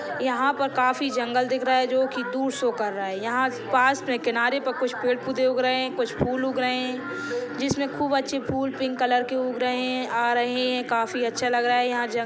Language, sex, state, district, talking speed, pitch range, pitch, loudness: Hindi, female, Chhattisgarh, Sukma, 240 wpm, 245-260 Hz, 255 Hz, -24 LUFS